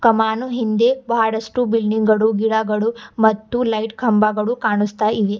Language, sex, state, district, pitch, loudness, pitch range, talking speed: Kannada, female, Karnataka, Bidar, 220 Hz, -18 LUFS, 215-230 Hz, 110 wpm